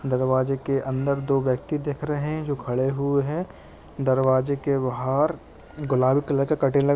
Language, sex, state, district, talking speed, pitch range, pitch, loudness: Hindi, male, Uttar Pradesh, Jalaun, 180 wpm, 130-145 Hz, 140 Hz, -24 LUFS